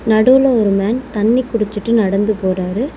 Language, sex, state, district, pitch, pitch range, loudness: Tamil, female, Tamil Nadu, Chennai, 220 Hz, 205-240 Hz, -15 LUFS